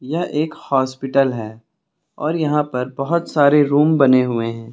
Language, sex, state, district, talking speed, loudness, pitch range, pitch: Hindi, male, Uttar Pradesh, Lucknow, 165 wpm, -18 LUFS, 125-150 Hz, 135 Hz